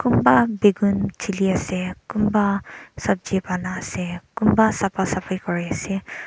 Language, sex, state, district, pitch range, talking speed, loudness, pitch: Nagamese, male, Nagaland, Dimapur, 185-205 Hz, 125 wpm, -22 LUFS, 195 Hz